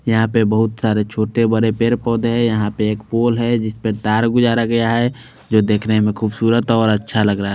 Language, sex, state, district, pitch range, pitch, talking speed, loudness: Hindi, male, Chandigarh, Chandigarh, 110-115 Hz, 110 Hz, 225 wpm, -17 LUFS